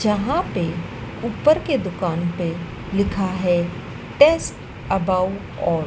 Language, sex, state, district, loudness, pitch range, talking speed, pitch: Hindi, female, Madhya Pradesh, Dhar, -21 LUFS, 170-210 Hz, 120 wpm, 185 Hz